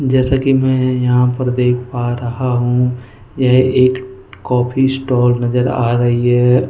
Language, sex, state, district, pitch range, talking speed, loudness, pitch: Hindi, male, Goa, North and South Goa, 120-130 Hz, 150 wpm, -14 LUFS, 125 Hz